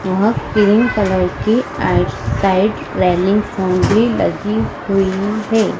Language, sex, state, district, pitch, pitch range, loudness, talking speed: Hindi, female, Madhya Pradesh, Dhar, 205 Hz, 190-220 Hz, -16 LUFS, 115 wpm